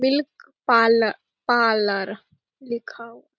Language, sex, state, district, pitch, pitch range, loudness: Hindi, female, Bihar, Begusarai, 235 Hz, 225-260 Hz, -21 LUFS